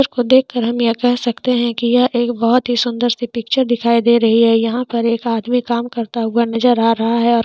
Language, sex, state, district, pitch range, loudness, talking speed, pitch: Hindi, female, Jharkhand, Sahebganj, 230-245 Hz, -15 LUFS, 260 wpm, 235 Hz